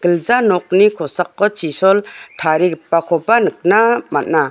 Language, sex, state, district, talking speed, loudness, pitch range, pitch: Garo, female, Meghalaya, West Garo Hills, 95 wpm, -15 LUFS, 165-210 Hz, 180 Hz